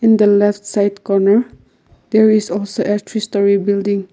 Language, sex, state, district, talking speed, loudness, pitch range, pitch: English, female, Nagaland, Kohima, 130 wpm, -15 LUFS, 200-215 Hz, 205 Hz